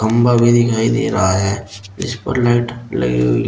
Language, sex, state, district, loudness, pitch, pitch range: Hindi, male, Uttar Pradesh, Shamli, -16 LUFS, 110 Hz, 100-120 Hz